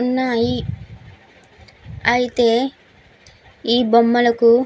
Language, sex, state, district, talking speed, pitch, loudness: Telugu, female, Andhra Pradesh, Guntur, 65 wpm, 235 Hz, -17 LUFS